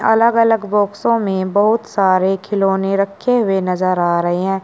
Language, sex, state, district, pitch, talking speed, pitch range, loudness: Hindi, male, Uttar Pradesh, Shamli, 195 Hz, 170 wpm, 190-220 Hz, -16 LUFS